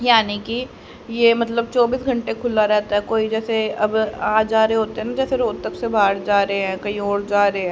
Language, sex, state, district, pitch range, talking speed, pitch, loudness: Hindi, female, Haryana, Jhajjar, 205-235 Hz, 225 wpm, 220 Hz, -19 LUFS